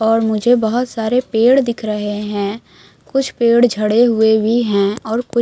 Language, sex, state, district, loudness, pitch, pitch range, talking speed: Hindi, female, Bihar, West Champaran, -15 LUFS, 225 Hz, 215-240 Hz, 175 wpm